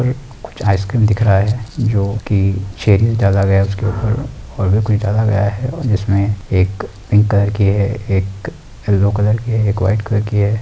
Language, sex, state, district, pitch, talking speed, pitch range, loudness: Hindi, male, Bihar, Araria, 105 Hz, 200 wpm, 100-110 Hz, -16 LUFS